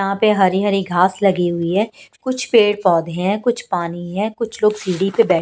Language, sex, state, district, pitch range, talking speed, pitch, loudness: Hindi, female, Punjab, Pathankot, 180-215 Hz, 220 wpm, 195 Hz, -17 LUFS